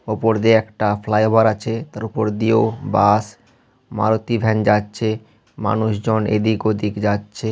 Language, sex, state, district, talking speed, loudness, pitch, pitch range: Bengali, male, West Bengal, Malda, 120 wpm, -18 LUFS, 110 Hz, 105-115 Hz